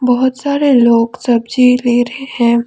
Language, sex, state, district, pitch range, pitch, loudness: Hindi, female, Jharkhand, Ranchi, 235-260 Hz, 250 Hz, -12 LUFS